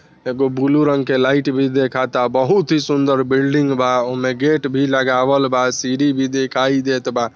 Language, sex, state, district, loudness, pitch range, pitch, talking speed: Bhojpuri, male, Bihar, Saran, -17 LUFS, 130-140 Hz, 135 Hz, 185 wpm